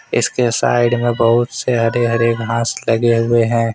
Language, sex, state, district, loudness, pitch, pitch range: Hindi, male, Jharkhand, Deoghar, -16 LUFS, 115 Hz, 115-120 Hz